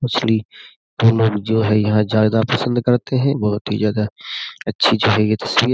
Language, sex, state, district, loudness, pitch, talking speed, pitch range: Hindi, male, Uttar Pradesh, Jyotiba Phule Nagar, -17 LUFS, 110 Hz, 190 wpm, 105-120 Hz